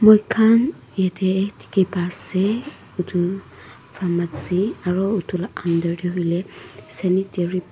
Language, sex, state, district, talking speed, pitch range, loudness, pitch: Nagamese, female, Nagaland, Dimapur, 110 wpm, 175-195 Hz, -21 LUFS, 185 Hz